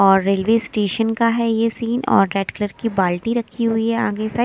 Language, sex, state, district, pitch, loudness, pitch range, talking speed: Hindi, female, Himachal Pradesh, Shimla, 225 Hz, -19 LUFS, 200-230 Hz, 230 wpm